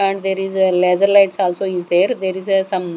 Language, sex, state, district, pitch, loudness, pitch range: English, female, Punjab, Kapurthala, 190 Hz, -16 LUFS, 180-195 Hz